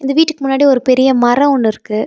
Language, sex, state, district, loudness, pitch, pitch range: Tamil, female, Tamil Nadu, Nilgiris, -12 LUFS, 265 Hz, 240-280 Hz